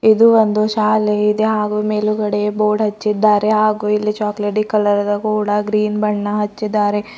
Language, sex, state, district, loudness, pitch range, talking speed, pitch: Kannada, female, Karnataka, Bidar, -16 LUFS, 210-215 Hz, 135 wpm, 210 Hz